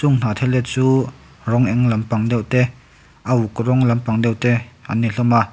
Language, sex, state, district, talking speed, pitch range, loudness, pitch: Mizo, male, Mizoram, Aizawl, 195 wpm, 115-125 Hz, -18 LUFS, 120 Hz